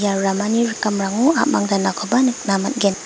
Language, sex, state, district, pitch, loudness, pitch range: Garo, female, Meghalaya, West Garo Hills, 205 Hz, -18 LUFS, 195-235 Hz